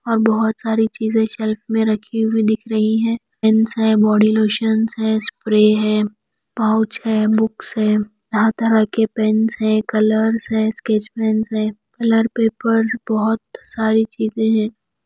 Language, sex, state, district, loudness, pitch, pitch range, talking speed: Hindi, female, Odisha, Nuapada, -18 LUFS, 220 Hz, 215-225 Hz, 145 wpm